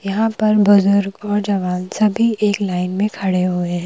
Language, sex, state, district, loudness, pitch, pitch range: Hindi, female, Madhya Pradesh, Bhopal, -17 LUFS, 200 Hz, 185-210 Hz